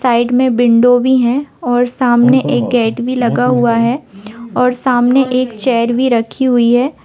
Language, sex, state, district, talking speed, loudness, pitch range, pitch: Bhojpuri, female, Bihar, Saran, 180 wpm, -12 LUFS, 235-255 Hz, 245 Hz